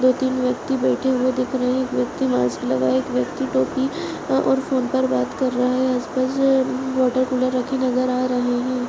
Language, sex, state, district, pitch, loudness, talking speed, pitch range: Hindi, female, Goa, North and South Goa, 255 Hz, -21 LUFS, 195 wpm, 250-260 Hz